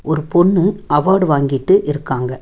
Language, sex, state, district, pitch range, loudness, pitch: Tamil, female, Tamil Nadu, Nilgiris, 145-190 Hz, -15 LUFS, 160 Hz